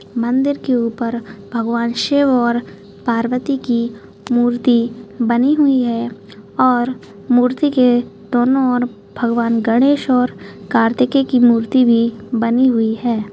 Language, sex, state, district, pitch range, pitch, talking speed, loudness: Hindi, female, Chhattisgarh, Kabirdham, 230-250 Hz, 240 Hz, 120 wpm, -16 LUFS